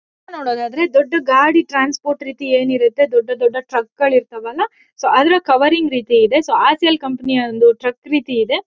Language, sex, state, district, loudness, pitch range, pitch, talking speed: Kannada, female, Karnataka, Chamarajanagar, -15 LUFS, 255-335 Hz, 280 Hz, 180 wpm